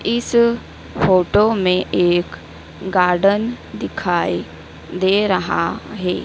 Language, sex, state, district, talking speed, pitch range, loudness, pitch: Hindi, female, Madhya Pradesh, Dhar, 85 wpm, 180-215 Hz, -18 LUFS, 190 Hz